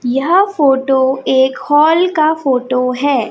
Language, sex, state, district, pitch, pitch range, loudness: Hindi, female, Chhattisgarh, Raipur, 270 Hz, 260-310 Hz, -13 LUFS